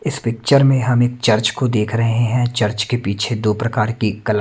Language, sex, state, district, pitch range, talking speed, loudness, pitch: Hindi, male, Bihar, Katihar, 110-125 Hz, 230 wpm, -17 LUFS, 115 Hz